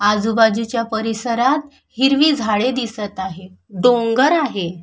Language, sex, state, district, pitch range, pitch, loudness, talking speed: Marathi, female, Maharashtra, Sindhudurg, 210-255 Hz, 230 Hz, -17 LUFS, 100 wpm